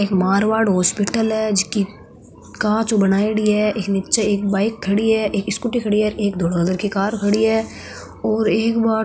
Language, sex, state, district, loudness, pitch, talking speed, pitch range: Marwari, female, Rajasthan, Nagaur, -18 LUFS, 210 Hz, 200 wpm, 200-220 Hz